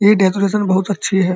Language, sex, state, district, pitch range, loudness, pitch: Hindi, male, Uttar Pradesh, Muzaffarnagar, 190-205 Hz, -16 LUFS, 195 Hz